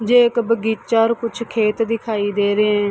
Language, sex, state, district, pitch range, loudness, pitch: Hindi, female, Bihar, East Champaran, 210-230 Hz, -18 LUFS, 225 Hz